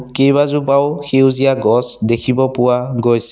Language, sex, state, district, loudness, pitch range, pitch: Assamese, male, Assam, Sonitpur, -14 LUFS, 120-135 Hz, 130 Hz